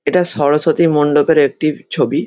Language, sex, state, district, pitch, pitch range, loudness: Bengali, male, West Bengal, Malda, 155 Hz, 145-160 Hz, -14 LUFS